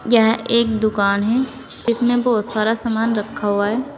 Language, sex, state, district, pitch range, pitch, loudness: Hindi, female, Uttar Pradesh, Saharanpur, 215-240 Hz, 225 Hz, -18 LUFS